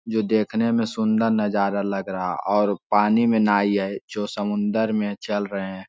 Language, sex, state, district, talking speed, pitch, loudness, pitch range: Hindi, male, Jharkhand, Sahebganj, 205 wpm, 105 Hz, -22 LUFS, 100-110 Hz